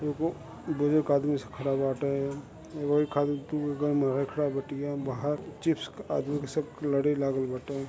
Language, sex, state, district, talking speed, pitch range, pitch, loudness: Bhojpuri, male, Uttar Pradesh, Gorakhpur, 130 wpm, 140-150 Hz, 145 Hz, -30 LUFS